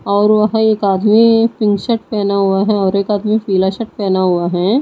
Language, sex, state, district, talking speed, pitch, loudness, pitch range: Hindi, female, Odisha, Nuapada, 210 wpm, 205 Hz, -14 LUFS, 195-220 Hz